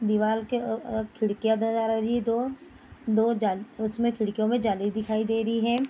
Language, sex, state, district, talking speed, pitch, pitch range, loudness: Hindi, female, Bihar, Bhagalpur, 195 wpm, 225 Hz, 215-235 Hz, -27 LUFS